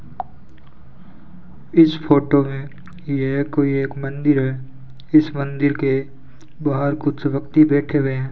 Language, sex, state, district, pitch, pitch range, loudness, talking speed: Hindi, male, Rajasthan, Bikaner, 140 Hz, 135-145 Hz, -19 LUFS, 120 wpm